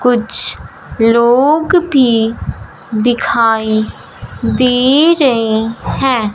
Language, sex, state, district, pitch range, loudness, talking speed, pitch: Hindi, male, Punjab, Fazilka, 225-265 Hz, -12 LUFS, 65 wpm, 240 Hz